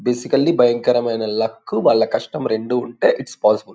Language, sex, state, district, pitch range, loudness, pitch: Telugu, male, Andhra Pradesh, Guntur, 110-125 Hz, -18 LUFS, 120 Hz